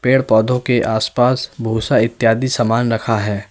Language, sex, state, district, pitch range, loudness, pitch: Hindi, male, Uttar Pradesh, Lalitpur, 110-125 Hz, -16 LUFS, 115 Hz